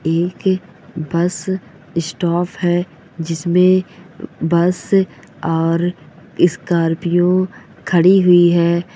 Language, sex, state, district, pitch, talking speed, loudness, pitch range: Hindi, female, Bihar, Saran, 175 Hz, 80 wpm, -16 LUFS, 170-185 Hz